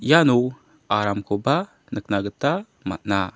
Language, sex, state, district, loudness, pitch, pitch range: Garo, male, Meghalaya, South Garo Hills, -23 LUFS, 105 Hz, 100-145 Hz